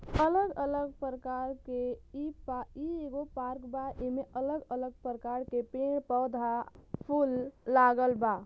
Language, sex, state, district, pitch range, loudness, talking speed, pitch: Bhojpuri, female, Uttar Pradesh, Gorakhpur, 250-280 Hz, -33 LUFS, 140 wpm, 260 Hz